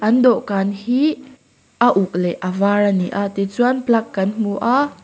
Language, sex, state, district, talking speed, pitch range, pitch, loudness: Mizo, female, Mizoram, Aizawl, 190 wpm, 195-250 Hz, 205 Hz, -18 LUFS